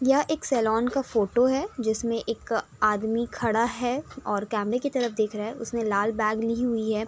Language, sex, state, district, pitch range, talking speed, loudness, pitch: Hindi, female, Uttar Pradesh, Budaun, 220-245 Hz, 205 wpm, -26 LUFS, 230 Hz